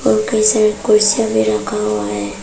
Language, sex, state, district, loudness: Hindi, female, Arunachal Pradesh, Papum Pare, -14 LUFS